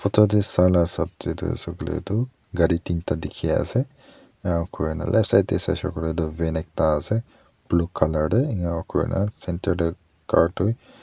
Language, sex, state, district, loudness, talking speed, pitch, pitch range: Nagamese, male, Nagaland, Dimapur, -24 LUFS, 160 wpm, 85 Hz, 80-105 Hz